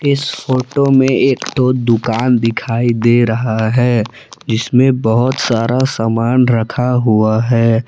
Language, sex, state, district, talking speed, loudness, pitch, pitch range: Hindi, male, Jharkhand, Palamu, 130 wpm, -14 LUFS, 120 Hz, 115-130 Hz